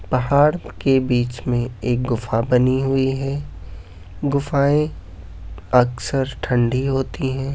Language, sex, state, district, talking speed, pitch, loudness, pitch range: Hindi, male, Uttar Pradesh, Hamirpur, 110 wpm, 125 Hz, -20 LUFS, 115-135 Hz